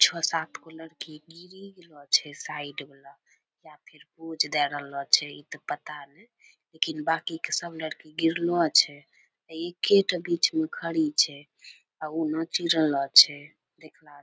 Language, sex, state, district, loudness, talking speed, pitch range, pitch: Angika, female, Bihar, Bhagalpur, -25 LUFS, 165 wpm, 150-170 Hz, 160 Hz